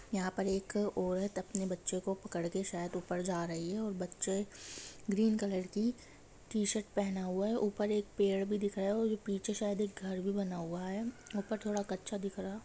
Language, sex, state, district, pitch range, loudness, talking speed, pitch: Hindi, female, Jharkhand, Jamtara, 185-210 Hz, -36 LUFS, 210 wpm, 200 Hz